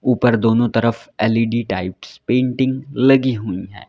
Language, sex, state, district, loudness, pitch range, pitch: Hindi, male, Uttar Pradesh, Lalitpur, -18 LUFS, 110-130 Hz, 115 Hz